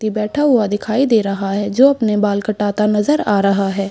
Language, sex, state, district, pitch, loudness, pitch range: Hindi, female, Uttar Pradesh, Budaun, 210 Hz, -16 LUFS, 200-225 Hz